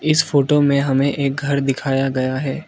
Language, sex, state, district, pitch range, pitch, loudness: Hindi, male, Arunachal Pradesh, Lower Dibang Valley, 135-145 Hz, 140 Hz, -18 LUFS